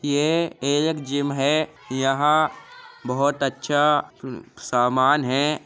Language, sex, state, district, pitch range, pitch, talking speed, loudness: Hindi, male, Uttar Pradesh, Jyotiba Phule Nagar, 135-155 Hz, 145 Hz, 105 wpm, -22 LUFS